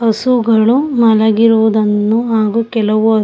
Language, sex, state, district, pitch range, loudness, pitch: Kannada, female, Karnataka, Shimoga, 220-230 Hz, -12 LUFS, 225 Hz